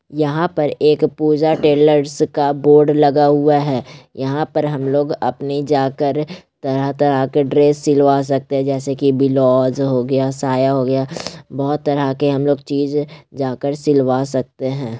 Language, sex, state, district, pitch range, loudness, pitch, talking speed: Magahi, male, Bihar, Gaya, 135-150 Hz, -16 LUFS, 140 Hz, 155 wpm